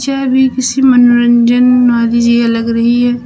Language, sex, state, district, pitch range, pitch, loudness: Hindi, female, Uttar Pradesh, Lucknow, 235-255 Hz, 245 Hz, -10 LUFS